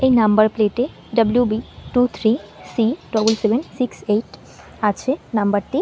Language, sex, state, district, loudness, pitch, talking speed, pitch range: Bengali, female, West Bengal, North 24 Parganas, -19 LUFS, 220 Hz, 165 wpm, 210-245 Hz